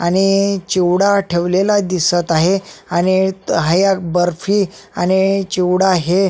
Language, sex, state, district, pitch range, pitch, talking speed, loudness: Marathi, male, Maharashtra, Sindhudurg, 175-195 Hz, 185 Hz, 115 wpm, -15 LUFS